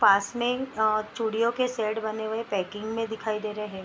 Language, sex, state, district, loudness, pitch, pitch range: Hindi, female, Bihar, Bhagalpur, -28 LUFS, 220 Hz, 215-230 Hz